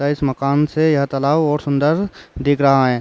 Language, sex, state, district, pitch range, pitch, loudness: Hindi, male, Uttar Pradesh, Varanasi, 140-150 Hz, 145 Hz, -17 LUFS